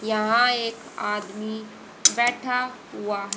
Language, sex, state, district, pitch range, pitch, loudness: Hindi, female, Haryana, Rohtak, 210-240 Hz, 220 Hz, -23 LUFS